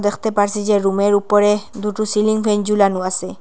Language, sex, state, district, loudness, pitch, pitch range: Bengali, female, Assam, Hailakandi, -17 LUFS, 205 Hz, 205-210 Hz